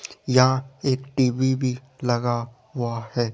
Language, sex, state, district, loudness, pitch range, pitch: Hindi, male, Rajasthan, Jaipur, -23 LUFS, 120-130 Hz, 130 Hz